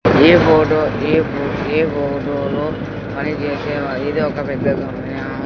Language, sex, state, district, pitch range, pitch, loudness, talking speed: Telugu, male, Andhra Pradesh, Sri Satya Sai, 135-155 Hz, 145 Hz, -17 LUFS, 110 wpm